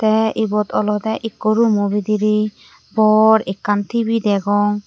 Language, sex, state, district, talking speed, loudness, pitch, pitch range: Chakma, female, Tripura, West Tripura, 125 wpm, -17 LUFS, 215 Hz, 205-220 Hz